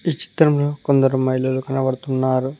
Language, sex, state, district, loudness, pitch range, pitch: Telugu, male, Telangana, Mahabubabad, -19 LUFS, 130-145 Hz, 135 Hz